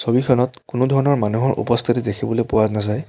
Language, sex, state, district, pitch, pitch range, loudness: Assamese, male, Assam, Kamrup Metropolitan, 120 Hz, 110-130 Hz, -19 LUFS